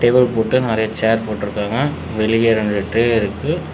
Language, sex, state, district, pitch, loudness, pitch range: Tamil, male, Tamil Nadu, Namakkal, 110 Hz, -18 LUFS, 105-115 Hz